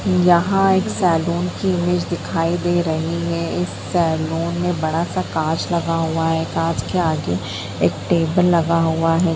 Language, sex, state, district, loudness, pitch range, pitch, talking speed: Hindi, female, Bihar, Jamui, -19 LUFS, 160-175 Hz, 170 Hz, 165 wpm